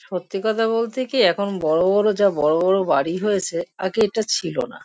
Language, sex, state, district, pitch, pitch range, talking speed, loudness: Bengali, female, West Bengal, Kolkata, 195 Hz, 175-220 Hz, 210 wpm, -20 LUFS